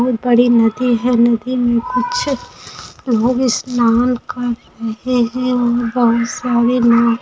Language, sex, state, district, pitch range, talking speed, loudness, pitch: Hindi, female, Bihar, Begusarai, 235-250 Hz, 85 wpm, -15 LUFS, 240 Hz